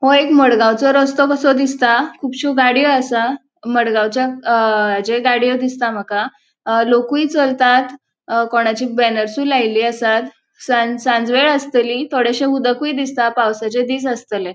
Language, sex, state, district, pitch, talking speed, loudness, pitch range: Konkani, female, Goa, North and South Goa, 245 Hz, 120 wpm, -15 LUFS, 230-270 Hz